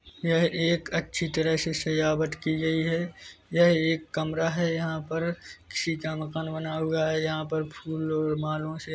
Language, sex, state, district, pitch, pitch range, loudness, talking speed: Hindi, male, Chhattisgarh, Bilaspur, 160 Hz, 155-165 Hz, -28 LUFS, 180 wpm